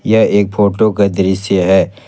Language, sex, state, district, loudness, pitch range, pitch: Hindi, male, Jharkhand, Ranchi, -13 LUFS, 95-105 Hz, 100 Hz